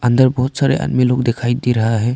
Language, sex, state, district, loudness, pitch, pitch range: Hindi, male, Arunachal Pradesh, Papum Pare, -16 LUFS, 125 Hz, 120-130 Hz